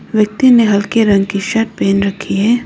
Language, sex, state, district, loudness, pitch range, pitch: Hindi, female, Arunachal Pradesh, Lower Dibang Valley, -13 LUFS, 200-225 Hz, 210 Hz